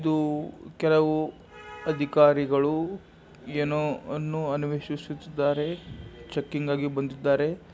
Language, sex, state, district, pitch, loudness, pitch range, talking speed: Kannada, male, Karnataka, Bijapur, 150 Hz, -27 LUFS, 145-155 Hz, 100 wpm